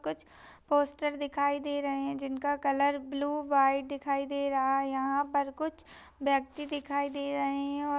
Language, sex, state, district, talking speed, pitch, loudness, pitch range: Hindi, female, Maharashtra, Pune, 180 wpm, 280 Hz, -31 LUFS, 275-285 Hz